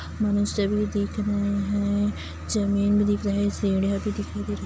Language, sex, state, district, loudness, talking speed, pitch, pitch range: Hindi, female, Chhattisgarh, Kabirdham, -25 LUFS, 195 wpm, 205 Hz, 200-205 Hz